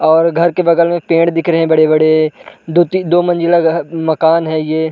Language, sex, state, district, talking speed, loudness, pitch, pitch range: Hindi, male, Uttar Pradesh, Budaun, 230 wpm, -12 LUFS, 165 Hz, 160-170 Hz